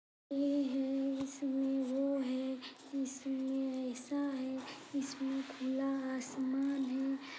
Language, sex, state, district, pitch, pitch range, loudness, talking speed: Hindi, female, Uttar Pradesh, Etah, 270 Hz, 265-275 Hz, -38 LUFS, 95 wpm